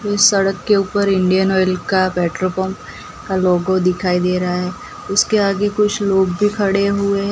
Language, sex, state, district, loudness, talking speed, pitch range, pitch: Hindi, female, Gujarat, Gandhinagar, -16 LUFS, 180 wpm, 185-200 Hz, 190 Hz